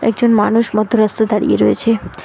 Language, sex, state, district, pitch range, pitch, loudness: Bengali, female, West Bengal, Alipurduar, 215-230 Hz, 220 Hz, -14 LUFS